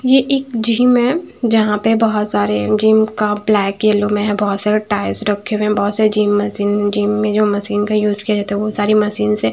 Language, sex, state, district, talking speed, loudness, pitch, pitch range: Hindi, female, Bihar, Patna, 235 wpm, -15 LUFS, 210 Hz, 205-215 Hz